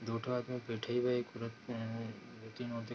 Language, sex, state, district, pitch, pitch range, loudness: Hindi, male, Bihar, Darbhanga, 115 Hz, 115-120 Hz, -39 LUFS